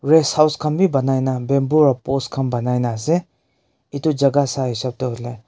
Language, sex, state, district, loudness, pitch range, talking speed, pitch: Nagamese, male, Nagaland, Kohima, -19 LUFS, 125-150 Hz, 195 wpm, 135 Hz